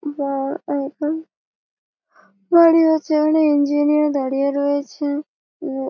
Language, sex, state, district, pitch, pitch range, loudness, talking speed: Bengali, female, West Bengal, Malda, 290 Hz, 280-310 Hz, -18 LUFS, 100 wpm